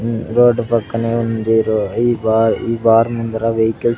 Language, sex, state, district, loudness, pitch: Telugu, male, Andhra Pradesh, Sri Satya Sai, -16 LUFS, 115 Hz